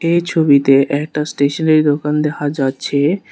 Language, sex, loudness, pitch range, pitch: Bengali, male, -15 LUFS, 140-155 Hz, 150 Hz